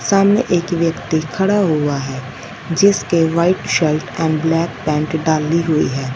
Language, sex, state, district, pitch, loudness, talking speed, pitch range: Hindi, female, Punjab, Fazilka, 160 Hz, -16 LUFS, 145 wpm, 155-175 Hz